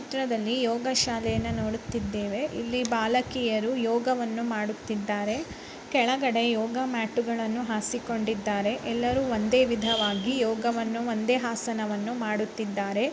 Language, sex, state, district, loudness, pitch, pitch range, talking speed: Kannada, female, Karnataka, Dakshina Kannada, -27 LUFS, 230 Hz, 220-245 Hz, 90 wpm